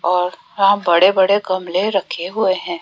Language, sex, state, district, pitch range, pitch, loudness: Hindi, female, Rajasthan, Jaipur, 180-195 Hz, 185 Hz, -16 LUFS